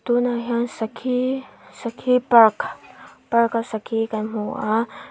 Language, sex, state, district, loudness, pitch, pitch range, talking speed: Mizo, female, Mizoram, Aizawl, -21 LUFS, 235 Hz, 225-245 Hz, 130 wpm